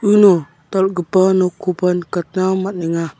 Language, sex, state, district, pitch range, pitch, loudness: Garo, male, Meghalaya, South Garo Hills, 175-190 Hz, 185 Hz, -16 LUFS